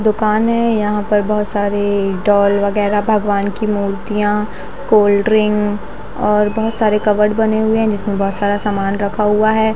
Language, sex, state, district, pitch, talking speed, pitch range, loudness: Hindi, female, Bihar, Jahanabad, 210 Hz, 160 wpm, 205-215 Hz, -15 LUFS